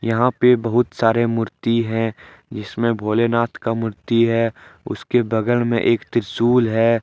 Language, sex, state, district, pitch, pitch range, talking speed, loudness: Hindi, male, Jharkhand, Deoghar, 115 Hz, 115-120 Hz, 145 wpm, -19 LUFS